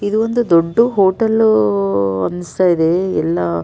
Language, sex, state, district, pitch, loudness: Kannada, female, Karnataka, Raichur, 175 Hz, -15 LUFS